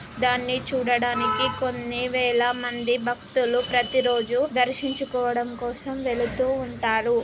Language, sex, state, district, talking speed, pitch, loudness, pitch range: Telugu, female, Telangana, Karimnagar, 90 wpm, 245 Hz, -24 LUFS, 240-255 Hz